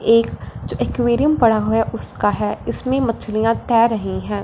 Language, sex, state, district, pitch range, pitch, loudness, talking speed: Hindi, female, Punjab, Fazilka, 220-240 Hz, 230 Hz, -18 LUFS, 175 wpm